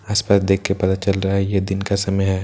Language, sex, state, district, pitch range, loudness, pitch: Hindi, male, Bihar, Katihar, 95-100 Hz, -19 LUFS, 95 Hz